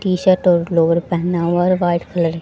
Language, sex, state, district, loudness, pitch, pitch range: Hindi, female, Haryana, Jhajjar, -16 LUFS, 175 Hz, 170-180 Hz